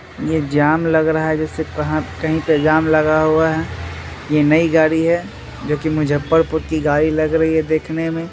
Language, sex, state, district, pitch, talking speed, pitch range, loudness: Hindi, male, Bihar, Muzaffarpur, 155 Hz, 190 wpm, 155-160 Hz, -17 LUFS